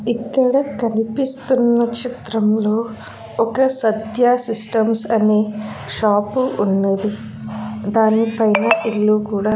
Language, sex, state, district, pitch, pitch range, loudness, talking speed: Telugu, female, Andhra Pradesh, Sri Satya Sai, 220 Hz, 210-235 Hz, -17 LUFS, 75 wpm